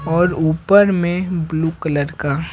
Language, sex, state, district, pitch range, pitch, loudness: Hindi, male, Bihar, Patna, 155-175 Hz, 165 Hz, -17 LUFS